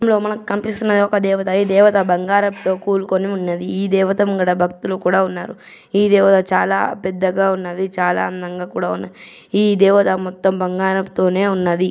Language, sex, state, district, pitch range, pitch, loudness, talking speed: Telugu, male, Andhra Pradesh, Chittoor, 185-200 Hz, 190 Hz, -17 LUFS, 150 wpm